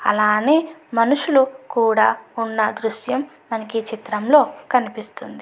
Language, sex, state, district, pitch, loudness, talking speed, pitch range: Telugu, female, Andhra Pradesh, Anantapur, 230 Hz, -19 LUFS, 100 wpm, 220-280 Hz